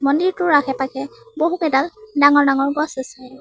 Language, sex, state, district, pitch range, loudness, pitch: Assamese, female, Assam, Sonitpur, 270-330 Hz, -18 LUFS, 285 Hz